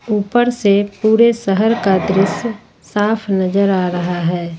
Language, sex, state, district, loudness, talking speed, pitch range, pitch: Hindi, female, Jharkhand, Ranchi, -15 LUFS, 155 wpm, 190-220 Hz, 200 Hz